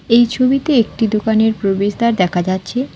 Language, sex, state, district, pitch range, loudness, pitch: Bengali, female, West Bengal, Alipurduar, 200-240 Hz, -15 LUFS, 220 Hz